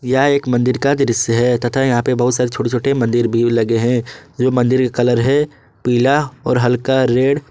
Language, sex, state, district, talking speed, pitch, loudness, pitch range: Hindi, male, Jharkhand, Ranchi, 215 wpm, 125 Hz, -16 LUFS, 120-135 Hz